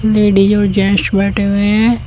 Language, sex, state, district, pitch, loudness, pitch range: Hindi, female, Uttar Pradesh, Shamli, 205 Hz, -12 LUFS, 200-210 Hz